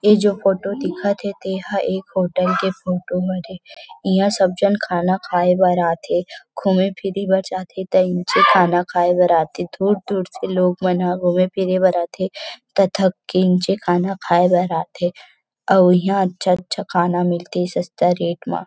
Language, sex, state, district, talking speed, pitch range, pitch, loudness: Chhattisgarhi, female, Chhattisgarh, Rajnandgaon, 175 wpm, 180-195 Hz, 185 Hz, -18 LUFS